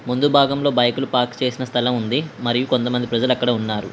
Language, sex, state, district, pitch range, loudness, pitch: Telugu, female, Telangana, Mahabubabad, 120-130 Hz, -19 LUFS, 125 Hz